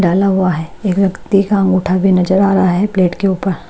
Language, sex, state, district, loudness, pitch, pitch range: Hindi, female, Odisha, Malkangiri, -14 LUFS, 190 Hz, 185-195 Hz